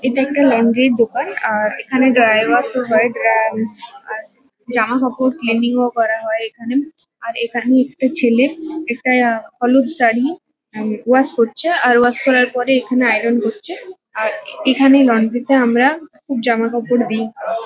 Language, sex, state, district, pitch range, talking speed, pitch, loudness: Bengali, female, West Bengal, Kolkata, 230-265 Hz, 155 wpm, 245 Hz, -15 LUFS